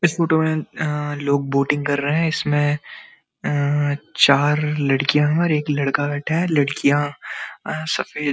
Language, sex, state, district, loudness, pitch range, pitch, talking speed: Hindi, male, Uttarakhand, Uttarkashi, -20 LUFS, 145-155 Hz, 145 Hz, 160 wpm